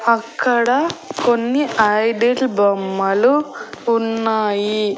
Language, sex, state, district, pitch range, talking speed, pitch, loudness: Telugu, female, Andhra Pradesh, Annamaya, 210-245 Hz, 60 wpm, 230 Hz, -17 LUFS